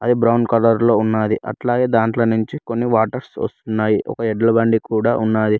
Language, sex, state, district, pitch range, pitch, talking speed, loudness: Telugu, male, Telangana, Mahabubabad, 110-120 Hz, 115 Hz, 160 wpm, -18 LUFS